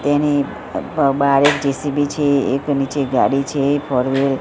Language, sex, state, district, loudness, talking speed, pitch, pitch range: Gujarati, female, Gujarat, Gandhinagar, -17 LUFS, 165 wpm, 140 Hz, 135-145 Hz